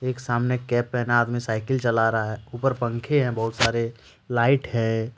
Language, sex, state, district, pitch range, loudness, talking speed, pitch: Hindi, male, Jharkhand, Ranchi, 115-125 Hz, -24 LUFS, 185 wpm, 120 Hz